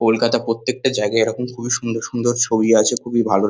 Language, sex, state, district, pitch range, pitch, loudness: Bengali, male, West Bengal, North 24 Parganas, 115-120 Hz, 115 Hz, -18 LUFS